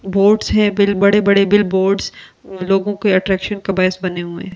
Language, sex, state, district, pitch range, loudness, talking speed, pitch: Hindi, female, Delhi, New Delhi, 190-205 Hz, -15 LUFS, 185 wpm, 195 Hz